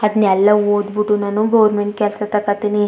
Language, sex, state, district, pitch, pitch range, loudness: Kannada, female, Karnataka, Chamarajanagar, 210 Hz, 205-210 Hz, -16 LUFS